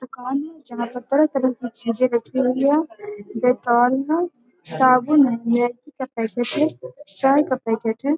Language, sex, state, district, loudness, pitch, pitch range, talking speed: Hindi, female, Bihar, Jamui, -20 LUFS, 255 Hz, 235-285 Hz, 145 wpm